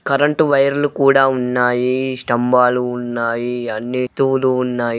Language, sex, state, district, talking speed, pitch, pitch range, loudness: Telugu, male, Telangana, Karimnagar, 120 wpm, 125 Hz, 125-135 Hz, -16 LUFS